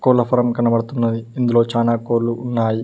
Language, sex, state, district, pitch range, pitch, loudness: Telugu, male, Telangana, Mahabubabad, 115-120 Hz, 115 Hz, -18 LUFS